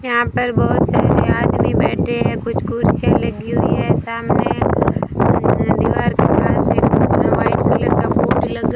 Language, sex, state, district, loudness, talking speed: Hindi, female, Rajasthan, Bikaner, -16 LUFS, 155 wpm